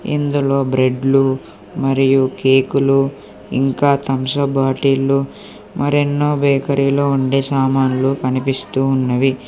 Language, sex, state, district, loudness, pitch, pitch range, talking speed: Telugu, male, Telangana, Hyderabad, -16 LUFS, 135 Hz, 130-140 Hz, 90 wpm